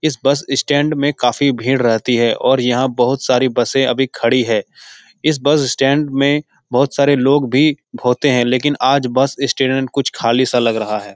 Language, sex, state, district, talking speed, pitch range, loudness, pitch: Hindi, male, Bihar, Jahanabad, 200 wpm, 125-140 Hz, -15 LUFS, 135 Hz